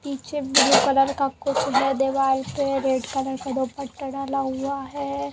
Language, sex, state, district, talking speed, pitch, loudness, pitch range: Hindi, female, Uttar Pradesh, Jalaun, 125 wpm, 270 Hz, -23 LUFS, 270-275 Hz